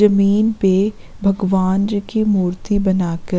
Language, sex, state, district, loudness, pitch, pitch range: Hindi, female, Uttarakhand, Uttarkashi, -17 LUFS, 195 Hz, 190-205 Hz